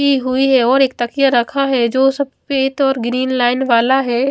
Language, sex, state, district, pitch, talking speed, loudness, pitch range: Hindi, female, Chandigarh, Chandigarh, 265 Hz, 210 wpm, -15 LUFS, 245-270 Hz